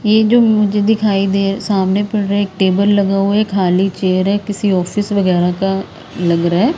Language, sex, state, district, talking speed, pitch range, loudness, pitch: Hindi, female, Himachal Pradesh, Shimla, 215 wpm, 190-205 Hz, -14 LUFS, 200 Hz